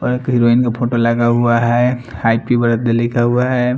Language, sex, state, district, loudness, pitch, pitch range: Hindi, male, Bihar, Patna, -15 LUFS, 120 Hz, 115-125 Hz